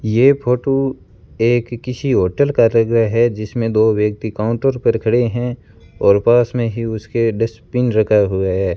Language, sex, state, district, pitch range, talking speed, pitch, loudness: Hindi, male, Rajasthan, Bikaner, 110-120 Hz, 170 wpm, 115 Hz, -16 LUFS